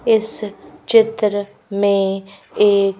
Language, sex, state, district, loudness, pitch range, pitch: Hindi, female, Madhya Pradesh, Bhopal, -17 LUFS, 195-215 Hz, 205 Hz